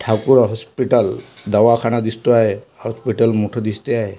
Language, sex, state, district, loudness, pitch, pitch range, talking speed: Marathi, male, Maharashtra, Washim, -17 LUFS, 115 Hz, 110-115 Hz, 115 wpm